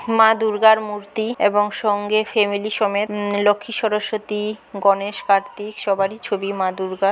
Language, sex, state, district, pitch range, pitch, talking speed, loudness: Bengali, female, West Bengal, Jhargram, 200-215 Hz, 210 Hz, 145 wpm, -20 LUFS